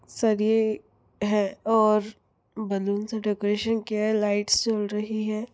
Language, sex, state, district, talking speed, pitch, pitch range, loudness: Hindi, female, Chhattisgarh, Rajnandgaon, 130 wpm, 215 Hz, 205-220 Hz, -25 LUFS